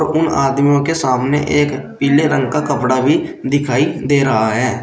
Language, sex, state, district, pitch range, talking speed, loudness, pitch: Hindi, male, Uttar Pradesh, Shamli, 130-145 Hz, 175 wpm, -15 LUFS, 140 Hz